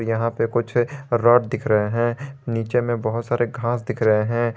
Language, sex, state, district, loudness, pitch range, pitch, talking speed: Hindi, male, Jharkhand, Garhwa, -21 LUFS, 115-120 Hz, 120 Hz, 195 wpm